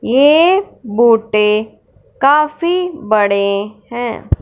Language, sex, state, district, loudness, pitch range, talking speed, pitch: Hindi, male, Punjab, Fazilka, -14 LUFS, 210-300 Hz, 70 wpm, 235 Hz